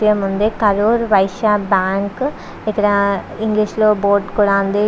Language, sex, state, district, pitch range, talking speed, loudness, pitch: Telugu, female, Andhra Pradesh, Visakhapatnam, 200-215 Hz, 125 wpm, -16 LUFS, 205 Hz